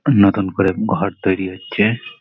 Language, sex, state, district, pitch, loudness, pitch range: Bengali, male, West Bengal, Malda, 95 Hz, -18 LUFS, 95-100 Hz